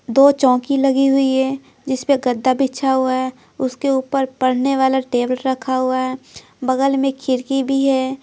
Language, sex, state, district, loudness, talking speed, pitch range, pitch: Hindi, female, Bihar, Patna, -18 LUFS, 175 wpm, 255-270 Hz, 265 Hz